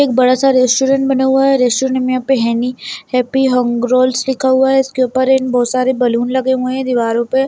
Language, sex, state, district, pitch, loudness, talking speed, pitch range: Hindi, male, Bihar, Gaya, 260 Hz, -14 LUFS, 240 wpm, 250-265 Hz